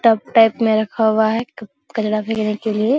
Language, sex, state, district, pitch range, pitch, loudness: Hindi, female, Bihar, Araria, 215-225 Hz, 220 Hz, -17 LUFS